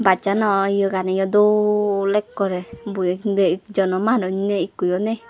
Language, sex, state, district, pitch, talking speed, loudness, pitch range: Chakma, female, Tripura, West Tripura, 200 Hz, 135 wpm, -20 LUFS, 190-210 Hz